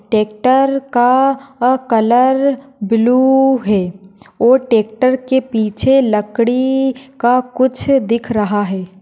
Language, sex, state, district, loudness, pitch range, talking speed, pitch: Hindi, female, Maharashtra, Pune, -14 LUFS, 215-265 Hz, 105 wpm, 250 Hz